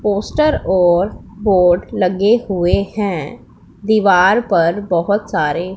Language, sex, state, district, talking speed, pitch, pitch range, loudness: Hindi, female, Punjab, Pathankot, 105 wpm, 195 Hz, 180-205 Hz, -15 LUFS